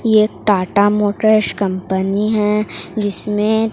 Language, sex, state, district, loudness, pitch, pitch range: Hindi, female, Odisha, Sambalpur, -16 LUFS, 210 Hz, 200-215 Hz